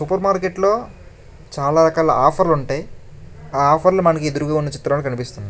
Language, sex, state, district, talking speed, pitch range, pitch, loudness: Telugu, male, Andhra Pradesh, Chittoor, 130 wpm, 140-185 Hz, 150 Hz, -18 LUFS